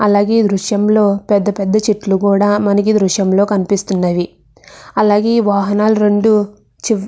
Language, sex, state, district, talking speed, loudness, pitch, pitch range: Telugu, female, Andhra Pradesh, Krishna, 50 wpm, -14 LUFS, 205 Hz, 200-210 Hz